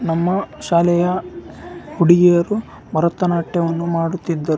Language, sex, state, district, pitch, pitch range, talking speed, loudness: Kannada, male, Karnataka, Raichur, 175 Hz, 170-180 Hz, 80 wpm, -17 LUFS